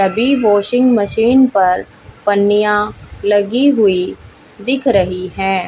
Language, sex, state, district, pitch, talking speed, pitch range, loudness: Hindi, female, Haryana, Jhajjar, 205 Hz, 105 wpm, 190-240 Hz, -14 LUFS